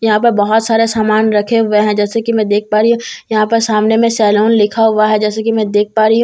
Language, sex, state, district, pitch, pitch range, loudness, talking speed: Hindi, female, Bihar, Katihar, 220 Hz, 210-225 Hz, -12 LUFS, 315 wpm